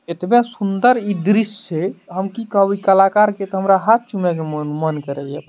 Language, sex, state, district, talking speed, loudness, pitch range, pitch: Maithili, male, Bihar, Madhepura, 220 wpm, -17 LUFS, 170-210 Hz, 195 Hz